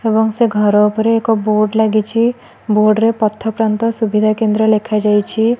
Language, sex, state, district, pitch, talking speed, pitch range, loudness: Odia, female, Odisha, Malkangiri, 220 Hz, 150 wpm, 215-225 Hz, -14 LUFS